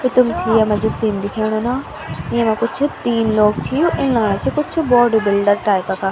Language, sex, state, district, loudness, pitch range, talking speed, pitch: Garhwali, female, Uttarakhand, Tehri Garhwal, -17 LUFS, 210-250 Hz, 195 wpm, 225 Hz